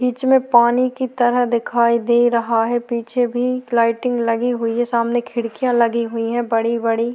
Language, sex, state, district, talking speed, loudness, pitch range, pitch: Hindi, female, Bihar, Vaishali, 175 wpm, -18 LUFS, 235-245 Hz, 235 Hz